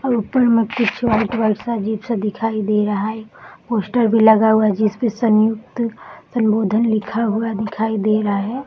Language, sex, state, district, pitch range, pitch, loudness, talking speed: Hindi, female, Bihar, Saharsa, 215-230 Hz, 220 Hz, -18 LUFS, 175 wpm